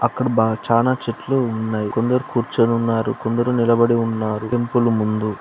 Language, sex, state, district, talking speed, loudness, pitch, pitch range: Telugu, male, Telangana, Karimnagar, 145 wpm, -19 LUFS, 115 Hz, 110-120 Hz